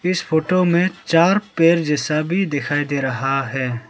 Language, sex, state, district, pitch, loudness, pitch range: Hindi, male, Arunachal Pradesh, Lower Dibang Valley, 160 Hz, -18 LUFS, 140-175 Hz